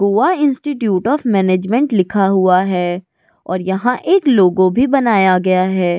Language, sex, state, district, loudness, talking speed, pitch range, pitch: Hindi, female, Goa, North and South Goa, -14 LUFS, 150 wpm, 185-250 Hz, 195 Hz